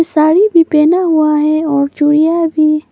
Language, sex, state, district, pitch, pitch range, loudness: Hindi, female, Arunachal Pradesh, Papum Pare, 310 Hz, 300-330 Hz, -11 LUFS